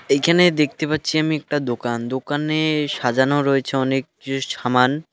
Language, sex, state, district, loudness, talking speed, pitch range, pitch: Bengali, male, West Bengal, Alipurduar, -20 LUFS, 140 wpm, 130-155 Hz, 145 Hz